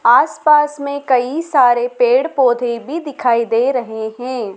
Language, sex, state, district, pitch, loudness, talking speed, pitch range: Hindi, female, Madhya Pradesh, Dhar, 260 Hz, -15 LUFS, 155 wpm, 240-300 Hz